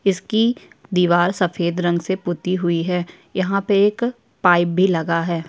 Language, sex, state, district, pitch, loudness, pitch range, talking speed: Hindi, female, Uttar Pradesh, Jyotiba Phule Nagar, 180 Hz, -19 LUFS, 175-195 Hz, 165 wpm